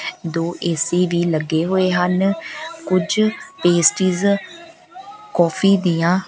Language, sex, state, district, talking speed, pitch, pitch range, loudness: Punjabi, female, Punjab, Pathankot, 105 wpm, 185 Hz, 170-215 Hz, -18 LUFS